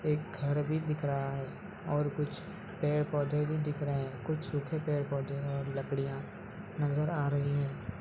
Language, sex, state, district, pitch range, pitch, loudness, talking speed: Hindi, male, Bihar, East Champaran, 140-150 Hz, 145 Hz, -34 LUFS, 180 wpm